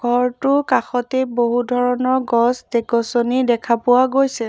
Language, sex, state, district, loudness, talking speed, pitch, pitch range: Assamese, female, Assam, Sonitpur, -18 LUFS, 135 wpm, 245 Hz, 240-255 Hz